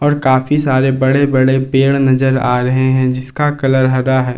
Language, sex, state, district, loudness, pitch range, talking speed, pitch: Hindi, male, Jharkhand, Palamu, -13 LUFS, 130-135 Hz, 180 wpm, 130 Hz